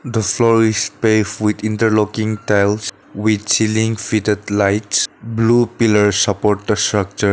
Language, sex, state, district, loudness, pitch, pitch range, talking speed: English, male, Nagaland, Dimapur, -16 LUFS, 110 Hz, 105-110 Hz, 130 wpm